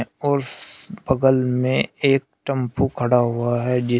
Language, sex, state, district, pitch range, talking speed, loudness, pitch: Hindi, male, Uttar Pradesh, Shamli, 120-135 Hz, 135 wpm, -21 LUFS, 130 Hz